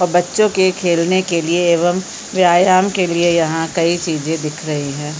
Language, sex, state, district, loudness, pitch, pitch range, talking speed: Hindi, female, Chhattisgarh, Korba, -16 LUFS, 175 Hz, 165-185 Hz, 185 wpm